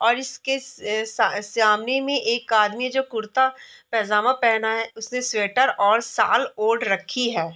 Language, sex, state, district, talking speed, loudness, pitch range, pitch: Hindi, female, Bihar, Vaishali, 160 wpm, -22 LUFS, 215-255 Hz, 230 Hz